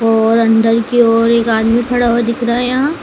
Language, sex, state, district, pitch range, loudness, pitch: Hindi, female, Madhya Pradesh, Dhar, 225-240 Hz, -12 LUFS, 235 Hz